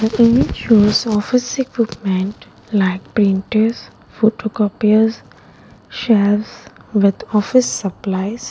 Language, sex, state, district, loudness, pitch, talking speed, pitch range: English, female, Gujarat, Valsad, -16 LUFS, 215 Hz, 70 wpm, 200-225 Hz